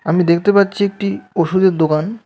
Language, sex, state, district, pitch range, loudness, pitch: Bengali, male, West Bengal, Alipurduar, 170-200 Hz, -15 LUFS, 190 Hz